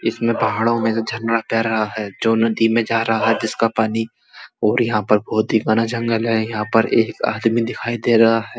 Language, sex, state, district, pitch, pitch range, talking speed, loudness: Hindi, male, Uttar Pradesh, Muzaffarnagar, 115 Hz, 110-115 Hz, 225 wpm, -18 LUFS